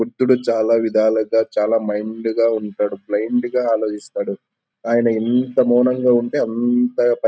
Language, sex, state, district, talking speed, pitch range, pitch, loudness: Telugu, male, Andhra Pradesh, Anantapur, 130 wpm, 110-120 Hz, 115 Hz, -18 LUFS